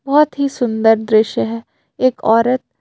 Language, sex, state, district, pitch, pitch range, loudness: Hindi, female, Jharkhand, Palamu, 230 Hz, 215-255 Hz, -15 LUFS